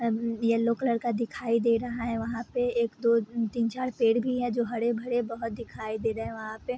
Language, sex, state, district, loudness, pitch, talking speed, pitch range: Hindi, female, Bihar, Vaishali, -28 LUFS, 230 Hz, 240 wpm, 230-240 Hz